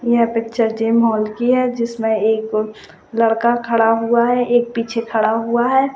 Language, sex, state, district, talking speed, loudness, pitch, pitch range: Hindi, female, Rajasthan, Churu, 170 wpm, -17 LUFS, 230 Hz, 225-235 Hz